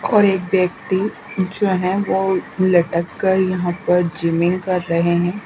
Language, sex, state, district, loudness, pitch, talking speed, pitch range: Hindi, female, Bihar, Katihar, -18 LUFS, 185 Hz, 155 wpm, 175-190 Hz